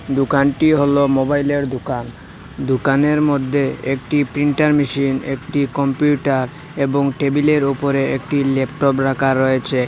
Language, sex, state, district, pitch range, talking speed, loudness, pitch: Bengali, male, Assam, Hailakandi, 135-145 Hz, 110 wpm, -17 LUFS, 140 Hz